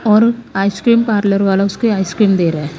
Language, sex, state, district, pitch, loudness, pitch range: Hindi, female, Himachal Pradesh, Shimla, 200 Hz, -14 LUFS, 195-225 Hz